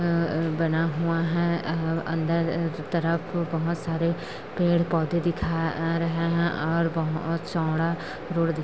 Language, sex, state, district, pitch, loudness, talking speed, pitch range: Hindi, female, Chhattisgarh, Bilaspur, 165 Hz, -26 LUFS, 145 wpm, 165-170 Hz